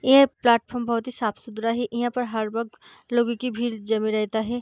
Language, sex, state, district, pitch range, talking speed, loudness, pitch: Hindi, female, Bihar, Darbhanga, 220-240 Hz, 210 wpm, -24 LUFS, 235 Hz